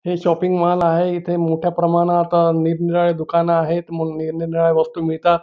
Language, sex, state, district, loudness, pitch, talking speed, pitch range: Marathi, male, Maharashtra, Nagpur, -18 LUFS, 170 Hz, 155 wpm, 165-175 Hz